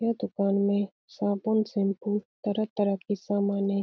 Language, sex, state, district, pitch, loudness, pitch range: Hindi, female, Bihar, Lakhisarai, 205 Hz, -28 LUFS, 200-210 Hz